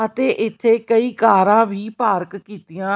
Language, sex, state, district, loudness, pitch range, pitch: Punjabi, female, Punjab, Kapurthala, -17 LUFS, 200-225 Hz, 220 Hz